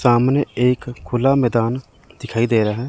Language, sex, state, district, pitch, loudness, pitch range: Hindi, male, Chandigarh, Chandigarh, 120 Hz, -18 LUFS, 115-125 Hz